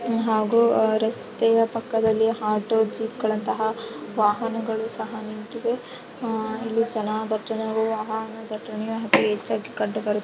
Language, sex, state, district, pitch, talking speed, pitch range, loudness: Kannada, female, Karnataka, Shimoga, 220 Hz, 110 wpm, 215-230 Hz, -24 LUFS